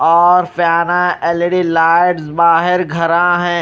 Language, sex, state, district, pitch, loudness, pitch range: Hindi, male, Odisha, Malkangiri, 170 Hz, -13 LUFS, 170-175 Hz